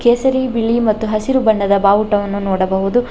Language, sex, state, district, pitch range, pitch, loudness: Kannada, female, Karnataka, Bangalore, 200-240 Hz, 215 Hz, -15 LUFS